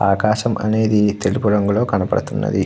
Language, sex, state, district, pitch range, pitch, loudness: Telugu, male, Andhra Pradesh, Krishna, 100-110 Hz, 105 Hz, -18 LUFS